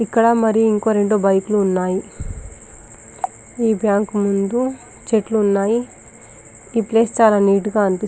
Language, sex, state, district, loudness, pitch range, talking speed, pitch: Telugu, female, Telangana, Karimnagar, -18 LUFS, 185-225 Hz, 135 wpm, 205 Hz